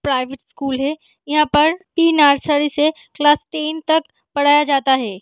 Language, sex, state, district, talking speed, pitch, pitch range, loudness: Hindi, female, Bihar, Gaya, 160 wpm, 295 Hz, 280-310 Hz, -17 LUFS